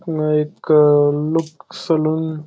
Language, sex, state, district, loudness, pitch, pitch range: Marathi, male, Maharashtra, Pune, -17 LUFS, 155 Hz, 150-160 Hz